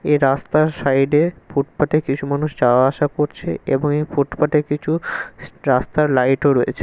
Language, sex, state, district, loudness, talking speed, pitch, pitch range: Bengali, male, West Bengal, Kolkata, -18 LUFS, 150 wpm, 145 Hz, 135-150 Hz